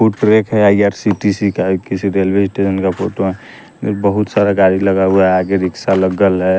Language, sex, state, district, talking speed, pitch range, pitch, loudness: Hindi, male, Bihar, West Champaran, 190 wpm, 95-100 Hz, 100 Hz, -14 LUFS